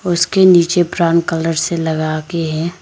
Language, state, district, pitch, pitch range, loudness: Hindi, Arunachal Pradesh, Lower Dibang Valley, 170 Hz, 160-175 Hz, -14 LUFS